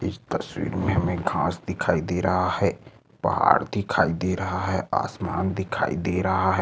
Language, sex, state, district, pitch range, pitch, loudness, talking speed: Hindi, male, Maharashtra, Aurangabad, 90-95 Hz, 95 Hz, -25 LUFS, 170 wpm